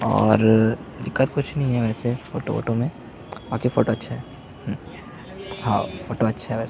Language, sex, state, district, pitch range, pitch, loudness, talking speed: Hindi, male, Chhattisgarh, Jashpur, 115-135 Hz, 120 Hz, -23 LUFS, 160 wpm